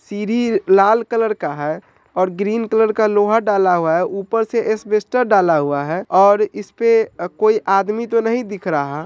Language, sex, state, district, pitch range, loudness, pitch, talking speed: Hindi, male, Bihar, Sitamarhi, 190-225 Hz, -17 LUFS, 210 Hz, 190 wpm